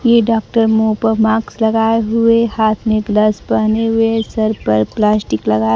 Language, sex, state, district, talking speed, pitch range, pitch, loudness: Hindi, female, Bihar, Kaimur, 175 wpm, 215-225 Hz, 220 Hz, -14 LUFS